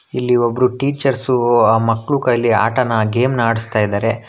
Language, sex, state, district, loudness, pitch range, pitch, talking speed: Kannada, male, Karnataka, Bangalore, -16 LUFS, 115-125 Hz, 120 Hz, 155 wpm